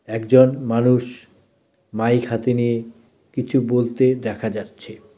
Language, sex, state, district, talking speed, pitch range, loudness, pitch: Bengali, male, West Bengal, Cooch Behar, 105 wpm, 110-125 Hz, -19 LUFS, 115 Hz